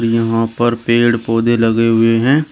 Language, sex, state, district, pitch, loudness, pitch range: Hindi, male, Uttar Pradesh, Shamli, 115 Hz, -14 LUFS, 115-120 Hz